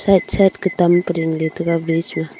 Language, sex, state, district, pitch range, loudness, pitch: Wancho, female, Arunachal Pradesh, Longding, 165-185 Hz, -17 LUFS, 170 Hz